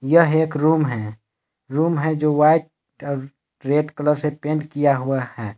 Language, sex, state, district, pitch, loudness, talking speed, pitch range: Hindi, male, Jharkhand, Palamu, 150 Hz, -20 LUFS, 170 wpm, 135-155 Hz